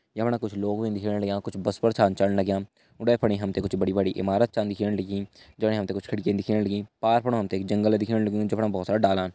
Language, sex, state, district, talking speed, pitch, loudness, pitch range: Hindi, male, Uttarakhand, Tehri Garhwal, 275 wpm, 105 Hz, -26 LUFS, 100-110 Hz